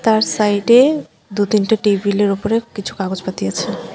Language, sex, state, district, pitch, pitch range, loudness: Bengali, female, West Bengal, Alipurduar, 205 Hz, 200-225 Hz, -16 LUFS